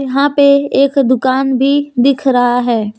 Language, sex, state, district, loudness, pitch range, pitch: Hindi, female, Jharkhand, Deoghar, -12 LUFS, 255-280 Hz, 270 Hz